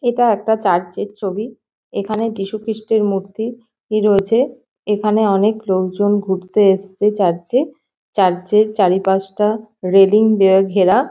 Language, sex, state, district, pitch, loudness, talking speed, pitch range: Bengali, female, West Bengal, North 24 Parganas, 210 Hz, -16 LUFS, 120 wpm, 195-220 Hz